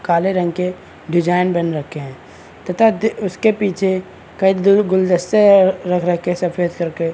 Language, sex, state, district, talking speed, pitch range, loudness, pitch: Hindi, male, Maharashtra, Chandrapur, 195 wpm, 175-195 Hz, -16 LUFS, 180 Hz